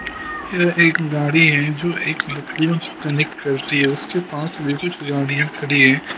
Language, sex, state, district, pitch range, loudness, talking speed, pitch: Hindi, male, Punjab, Kapurthala, 145-170 Hz, -18 LUFS, 155 wpm, 155 Hz